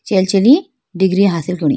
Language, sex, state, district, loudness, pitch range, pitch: Hindi, female, Uttarakhand, Tehri Garhwal, -14 LUFS, 180-210 Hz, 190 Hz